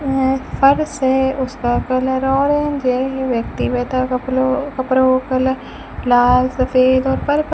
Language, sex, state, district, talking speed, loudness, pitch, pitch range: Hindi, female, Rajasthan, Bikaner, 160 wpm, -17 LUFS, 260 Hz, 255-270 Hz